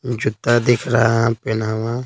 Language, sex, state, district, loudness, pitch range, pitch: Hindi, male, Bihar, Patna, -18 LUFS, 115-120 Hz, 120 Hz